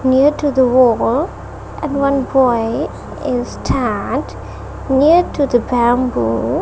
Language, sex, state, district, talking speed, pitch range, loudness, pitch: English, female, Punjab, Kapurthala, 110 wpm, 245-280 Hz, -15 LUFS, 260 Hz